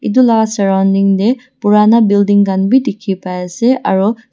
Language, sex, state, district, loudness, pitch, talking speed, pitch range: Nagamese, female, Nagaland, Dimapur, -12 LUFS, 205 Hz, 155 wpm, 195-230 Hz